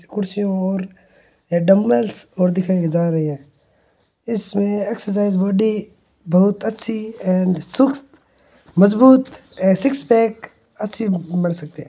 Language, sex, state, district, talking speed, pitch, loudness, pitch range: Hindi, male, Rajasthan, Churu, 110 wpm, 195 Hz, -18 LUFS, 180-220 Hz